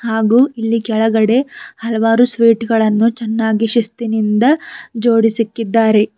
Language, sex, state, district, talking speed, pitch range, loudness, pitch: Kannada, female, Karnataka, Bidar, 85 wpm, 220-235 Hz, -14 LUFS, 225 Hz